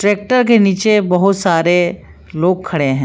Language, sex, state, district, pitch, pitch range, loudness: Hindi, female, Jharkhand, Palamu, 185 Hz, 175-205 Hz, -13 LUFS